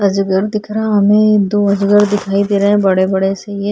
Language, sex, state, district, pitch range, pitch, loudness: Hindi, female, Goa, North and South Goa, 195-205 Hz, 200 Hz, -13 LUFS